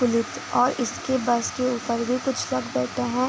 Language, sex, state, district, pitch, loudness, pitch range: Hindi, female, Uttar Pradesh, Gorakhpur, 245 Hz, -25 LUFS, 235-255 Hz